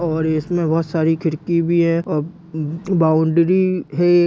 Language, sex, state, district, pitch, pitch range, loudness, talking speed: Hindi, male, Maharashtra, Nagpur, 165 Hz, 160-175 Hz, -18 LUFS, 140 wpm